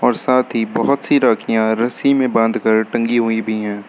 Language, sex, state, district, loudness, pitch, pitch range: Hindi, male, Uttar Pradesh, Lucknow, -16 LUFS, 115 Hz, 110-120 Hz